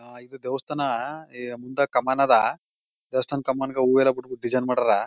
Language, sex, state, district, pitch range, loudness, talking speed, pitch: Kannada, male, Karnataka, Mysore, 125-140 Hz, -24 LUFS, 155 wpm, 135 Hz